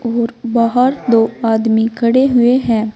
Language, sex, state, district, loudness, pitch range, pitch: Hindi, female, Uttar Pradesh, Saharanpur, -14 LUFS, 225-245 Hz, 235 Hz